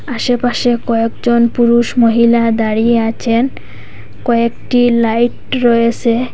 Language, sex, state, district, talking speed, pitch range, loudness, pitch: Bengali, female, Assam, Hailakandi, 85 wpm, 230-240 Hz, -13 LUFS, 235 Hz